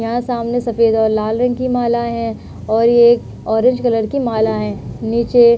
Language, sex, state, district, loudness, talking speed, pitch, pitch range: Hindi, female, Uttar Pradesh, Budaun, -16 LUFS, 205 wpm, 235 Hz, 220-240 Hz